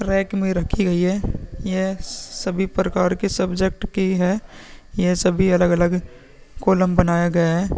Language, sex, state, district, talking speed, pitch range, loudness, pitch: Hindi, male, Uttar Pradesh, Muzaffarnagar, 145 wpm, 180-190 Hz, -20 LUFS, 185 Hz